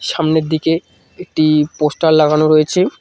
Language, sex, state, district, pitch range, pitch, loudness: Bengali, male, West Bengal, Cooch Behar, 155-165 Hz, 155 Hz, -14 LUFS